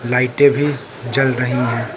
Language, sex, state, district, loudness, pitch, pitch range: Hindi, male, Uttar Pradesh, Lucknow, -17 LUFS, 125 Hz, 125-140 Hz